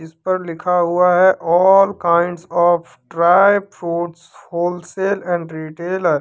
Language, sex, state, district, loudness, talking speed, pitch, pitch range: Hindi, male, Jharkhand, Deoghar, -16 LUFS, 135 wpm, 175 Hz, 170-185 Hz